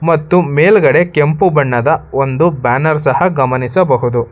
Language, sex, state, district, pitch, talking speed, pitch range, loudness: Kannada, male, Karnataka, Bangalore, 150 Hz, 110 wpm, 130-170 Hz, -12 LUFS